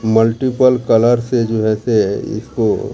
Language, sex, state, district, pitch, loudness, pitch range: Hindi, male, Bihar, Katihar, 115 Hz, -15 LUFS, 110-125 Hz